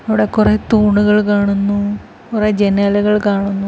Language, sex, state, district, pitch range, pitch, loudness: Malayalam, female, Kerala, Kollam, 200-210 Hz, 205 Hz, -14 LUFS